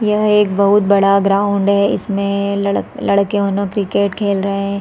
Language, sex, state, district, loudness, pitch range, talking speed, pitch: Hindi, female, Chhattisgarh, Raigarh, -15 LUFS, 200-205 Hz, 175 wpm, 200 Hz